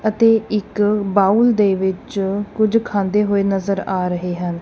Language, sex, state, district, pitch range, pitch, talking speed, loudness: Punjabi, female, Punjab, Kapurthala, 195-215 Hz, 200 Hz, 155 wpm, -18 LUFS